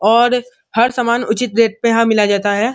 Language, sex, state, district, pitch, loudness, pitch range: Hindi, male, Uttar Pradesh, Muzaffarnagar, 230 Hz, -15 LUFS, 220-240 Hz